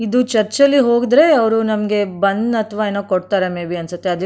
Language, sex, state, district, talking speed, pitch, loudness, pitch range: Kannada, female, Karnataka, Mysore, 185 wpm, 215 Hz, -16 LUFS, 190-235 Hz